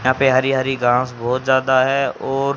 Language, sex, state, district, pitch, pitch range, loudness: Hindi, female, Haryana, Jhajjar, 130 Hz, 130-135 Hz, -17 LUFS